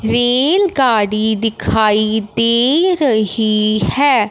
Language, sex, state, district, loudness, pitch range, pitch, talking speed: Hindi, female, Punjab, Fazilka, -13 LUFS, 215-260 Hz, 225 Hz, 85 wpm